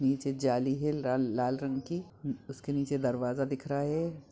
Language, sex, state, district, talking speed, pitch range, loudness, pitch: Hindi, male, Bihar, Madhepura, 165 wpm, 130-140 Hz, -32 LUFS, 135 Hz